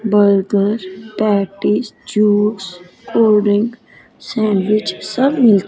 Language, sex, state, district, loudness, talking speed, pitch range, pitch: Hindi, female, Chandigarh, Chandigarh, -16 LUFS, 75 wpm, 200-220 Hz, 210 Hz